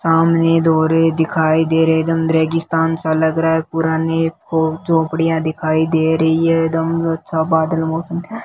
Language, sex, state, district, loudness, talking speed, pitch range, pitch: Hindi, male, Rajasthan, Bikaner, -16 LUFS, 170 wpm, 160-165 Hz, 160 Hz